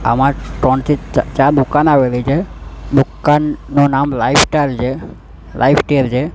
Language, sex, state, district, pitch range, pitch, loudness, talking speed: Gujarati, male, Gujarat, Gandhinagar, 130-145 Hz, 140 Hz, -14 LUFS, 125 wpm